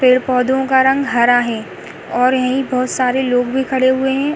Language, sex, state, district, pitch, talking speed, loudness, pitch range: Hindi, female, Uttar Pradesh, Hamirpur, 255 Hz, 195 wpm, -15 LUFS, 250-265 Hz